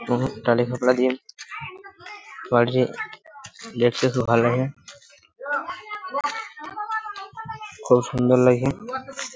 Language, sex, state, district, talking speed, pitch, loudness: Bengali, male, West Bengal, Purulia, 70 wpm, 225 Hz, -22 LUFS